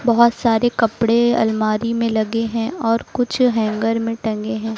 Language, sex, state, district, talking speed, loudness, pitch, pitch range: Hindi, female, Uttar Pradesh, Lucknow, 165 wpm, -18 LUFS, 230 Hz, 220-235 Hz